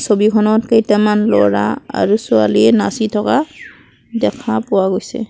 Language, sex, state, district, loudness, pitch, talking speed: Assamese, female, Assam, Kamrup Metropolitan, -14 LUFS, 210 Hz, 115 wpm